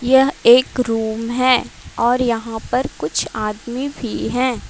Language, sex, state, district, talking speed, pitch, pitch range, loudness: Hindi, female, Karnataka, Bangalore, 140 wpm, 240 Hz, 225-255 Hz, -18 LUFS